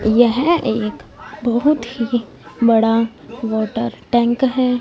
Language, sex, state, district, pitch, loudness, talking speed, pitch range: Hindi, female, Punjab, Fazilka, 235 Hz, -18 LUFS, 100 wpm, 220-245 Hz